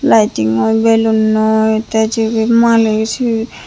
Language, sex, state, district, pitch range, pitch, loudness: Chakma, female, Tripura, Unakoti, 220-225 Hz, 220 Hz, -13 LUFS